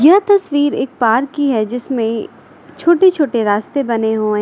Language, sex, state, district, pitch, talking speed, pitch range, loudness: Hindi, female, Uttar Pradesh, Lucknow, 260 Hz, 175 wpm, 225-295 Hz, -15 LUFS